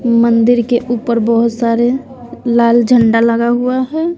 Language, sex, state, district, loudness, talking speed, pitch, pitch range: Hindi, female, Bihar, West Champaran, -12 LUFS, 145 wpm, 235 Hz, 235-250 Hz